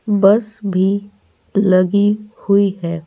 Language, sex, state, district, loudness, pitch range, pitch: Hindi, female, Bihar, Patna, -16 LUFS, 190-205 Hz, 200 Hz